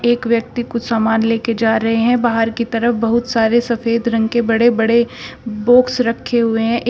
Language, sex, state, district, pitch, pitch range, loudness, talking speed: Hindi, female, Uttar Pradesh, Shamli, 235 Hz, 225-240 Hz, -16 LUFS, 200 wpm